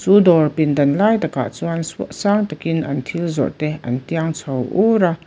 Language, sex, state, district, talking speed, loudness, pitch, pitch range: Mizo, female, Mizoram, Aizawl, 205 wpm, -18 LUFS, 160 Hz, 145-175 Hz